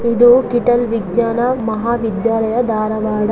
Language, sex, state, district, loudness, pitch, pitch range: Kannada, female, Karnataka, Dharwad, -15 LUFS, 230 Hz, 220-240 Hz